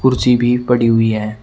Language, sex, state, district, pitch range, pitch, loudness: Hindi, male, Uttar Pradesh, Shamli, 110-125 Hz, 120 Hz, -14 LUFS